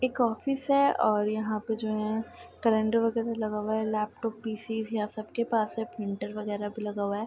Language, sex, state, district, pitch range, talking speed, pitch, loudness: Hindi, female, Bihar, Saharsa, 215-230 Hz, 205 wpm, 220 Hz, -29 LUFS